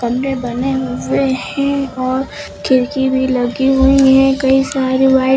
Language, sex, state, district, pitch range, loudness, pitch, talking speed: Hindi, female, Uttar Pradesh, Lucknow, 255-270 Hz, -14 LUFS, 265 Hz, 155 wpm